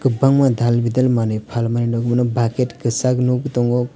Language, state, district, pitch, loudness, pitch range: Kokborok, Tripura, West Tripura, 120 Hz, -18 LUFS, 115-125 Hz